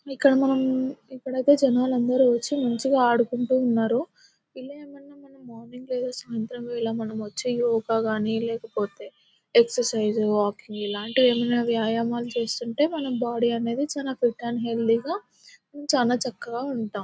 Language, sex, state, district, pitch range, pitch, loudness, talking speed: Telugu, female, Telangana, Nalgonda, 230-260 Hz, 240 Hz, -24 LUFS, 125 wpm